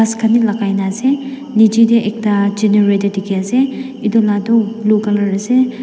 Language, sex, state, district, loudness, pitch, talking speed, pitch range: Nagamese, female, Nagaland, Dimapur, -14 LUFS, 220 Hz, 185 wpm, 205-235 Hz